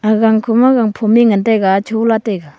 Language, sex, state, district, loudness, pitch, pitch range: Wancho, female, Arunachal Pradesh, Longding, -12 LUFS, 220 Hz, 210-225 Hz